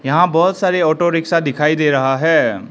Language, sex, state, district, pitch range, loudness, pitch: Hindi, male, Arunachal Pradesh, Lower Dibang Valley, 150-175 Hz, -15 LUFS, 160 Hz